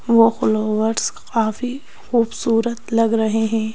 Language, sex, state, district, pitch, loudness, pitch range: Hindi, female, Madhya Pradesh, Bhopal, 225 Hz, -19 LUFS, 220-235 Hz